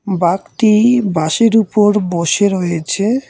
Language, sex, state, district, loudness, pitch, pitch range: Bengali, male, West Bengal, Cooch Behar, -14 LUFS, 200 Hz, 175-220 Hz